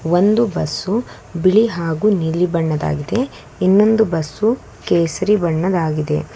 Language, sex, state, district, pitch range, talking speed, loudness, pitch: Kannada, female, Karnataka, Bangalore, 160-210 Hz, 95 wpm, -17 LUFS, 180 Hz